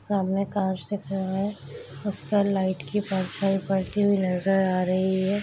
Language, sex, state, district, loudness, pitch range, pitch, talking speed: Hindi, female, Bihar, Darbhanga, -26 LUFS, 190-200 Hz, 195 Hz, 165 wpm